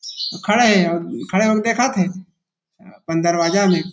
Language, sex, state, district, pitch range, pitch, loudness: Chhattisgarhi, male, Chhattisgarh, Rajnandgaon, 170-215 Hz, 185 Hz, -18 LUFS